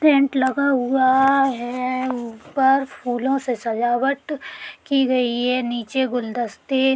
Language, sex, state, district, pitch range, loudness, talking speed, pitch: Hindi, female, Uttar Pradesh, Deoria, 245-275 Hz, -21 LUFS, 120 wpm, 260 Hz